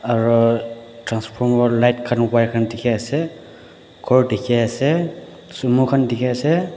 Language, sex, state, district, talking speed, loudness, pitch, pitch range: Nagamese, male, Nagaland, Dimapur, 135 wpm, -18 LUFS, 120 Hz, 115-130 Hz